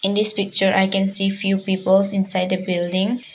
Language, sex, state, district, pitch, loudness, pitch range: English, female, Arunachal Pradesh, Papum Pare, 195 Hz, -19 LUFS, 190-195 Hz